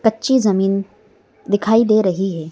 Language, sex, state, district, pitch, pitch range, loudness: Hindi, female, Madhya Pradesh, Bhopal, 205 Hz, 195-220 Hz, -17 LUFS